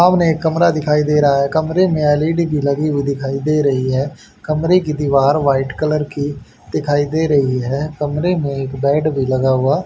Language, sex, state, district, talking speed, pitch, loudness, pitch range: Hindi, male, Haryana, Rohtak, 200 wpm, 145 Hz, -16 LUFS, 140-155 Hz